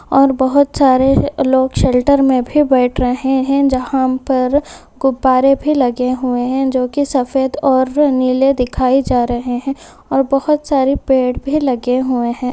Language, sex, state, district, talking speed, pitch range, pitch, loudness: Hindi, female, Bihar, Purnia, 165 wpm, 255-275 Hz, 265 Hz, -14 LUFS